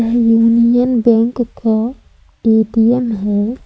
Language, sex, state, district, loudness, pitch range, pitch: Hindi, female, Madhya Pradesh, Umaria, -14 LUFS, 225-240 Hz, 230 Hz